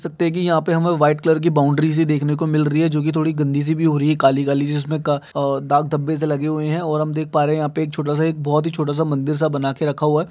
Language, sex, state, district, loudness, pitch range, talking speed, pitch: Hindi, male, Jharkhand, Jamtara, -19 LUFS, 145-160 Hz, 315 wpm, 155 Hz